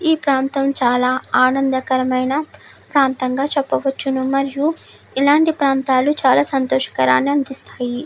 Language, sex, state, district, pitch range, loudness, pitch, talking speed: Telugu, female, Andhra Pradesh, Chittoor, 255-280 Hz, -17 LUFS, 270 Hz, 90 wpm